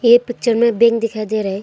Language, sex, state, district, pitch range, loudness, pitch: Hindi, female, Arunachal Pradesh, Longding, 215-235 Hz, -16 LUFS, 230 Hz